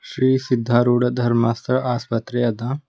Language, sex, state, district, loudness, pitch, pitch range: Kannada, male, Karnataka, Bidar, -20 LUFS, 120 Hz, 120-130 Hz